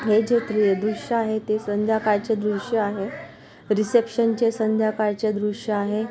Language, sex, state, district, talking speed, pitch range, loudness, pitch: Marathi, female, Maharashtra, Pune, 120 wpm, 210-225 Hz, -23 LUFS, 215 Hz